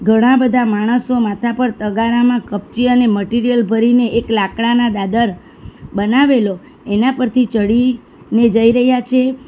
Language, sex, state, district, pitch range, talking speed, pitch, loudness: Gujarati, female, Gujarat, Valsad, 220-245 Hz, 135 wpm, 235 Hz, -14 LUFS